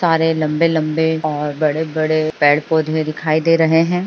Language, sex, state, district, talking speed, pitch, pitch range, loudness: Hindi, female, Bihar, Bhagalpur, 175 wpm, 160 Hz, 155-160 Hz, -16 LUFS